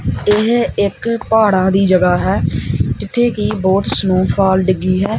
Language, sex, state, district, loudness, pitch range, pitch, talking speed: Punjabi, male, Punjab, Kapurthala, -14 LUFS, 185-210 Hz, 190 Hz, 140 wpm